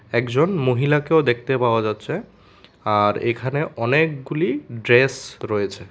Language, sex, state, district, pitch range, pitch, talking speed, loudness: Bengali, male, Tripura, West Tripura, 110-145 Hz, 120 Hz, 100 wpm, -20 LUFS